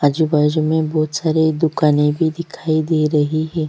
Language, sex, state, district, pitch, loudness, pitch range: Hindi, female, Chhattisgarh, Sukma, 155 Hz, -17 LUFS, 150-160 Hz